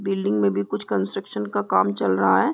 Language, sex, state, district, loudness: Hindi, female, Chhattisgarh, Raigarh, -22 LUFS